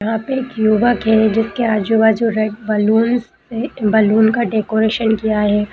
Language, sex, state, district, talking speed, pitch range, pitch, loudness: Hindi, female, Bihar, East Champaran, 165 wpm, 215-230 Hz, 220 Hz, -16 LUFS